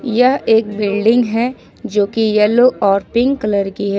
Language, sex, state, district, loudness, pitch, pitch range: Hindi, female, Jharkhand, Ranchi, -15 LUFS, 220 Hz, 205-240 Hz